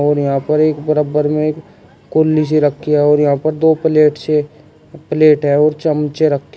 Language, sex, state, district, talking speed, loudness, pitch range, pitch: Hindi, male, Uttar Pradesh, Shamli, 190 wpm, -14 LUFS, 150-155 Hz, 150 Hz